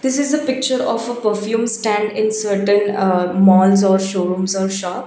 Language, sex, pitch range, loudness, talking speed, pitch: English, female, 190-230 Hz, -16 LUFS, 190 wpm, 205 Hz